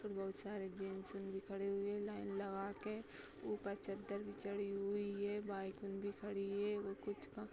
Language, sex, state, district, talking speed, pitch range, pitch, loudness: Hindi, female, Uttar Pradesh, Hamirpur, 185 wpm, 195-205 Hz, 200 Hz, -45 LUFS